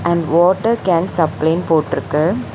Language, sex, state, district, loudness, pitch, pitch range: Tamil, female, Tamil Nadu, Chennai, -16 LUFS, 170 Hz, 160-180 Hz